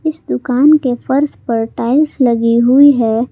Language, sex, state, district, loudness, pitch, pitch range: Hindi, female, Jharkhand, Palamu, -12 LUFS, 250 Hz, 230-285 Hz